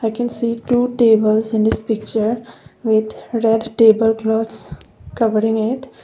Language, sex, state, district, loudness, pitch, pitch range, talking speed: English, female, Assam, Kamrup Metropolitan, -17 LUFS, 225 Hz, 220-235 Hz, 140 wpm